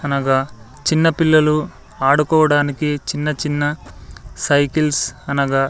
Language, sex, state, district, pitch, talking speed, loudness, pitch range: Telugu, male, Andhra Pradesh, Sri Satya Sai, 145 Hz, 85 wpm, -17 LUFS, 135-150 Hz